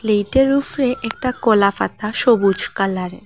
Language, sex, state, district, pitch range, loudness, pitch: Bengali, female, Assam, Hailakandi, 200-255 Hz, -17 LUFS, 225 Hz